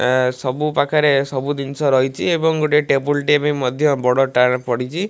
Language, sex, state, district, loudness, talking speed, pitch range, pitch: Odia, male, Odisha, Malkangiri, -17 LUFS, 165 wpm, 130-150 Hz, 140 Hz